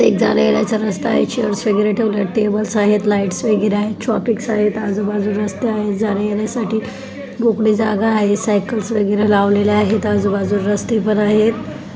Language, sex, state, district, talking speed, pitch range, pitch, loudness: Marathi, female, Maharashtra, Chandrapur, 140 wpm, 205-220 Hz, 210 Hz, -17 LUFS